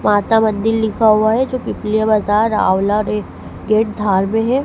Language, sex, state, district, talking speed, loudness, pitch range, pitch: Hindi, female, Madhya Pradesh, Dhar, 170 wpm, -16 LUFS, 210-225 Hz, 215 Hz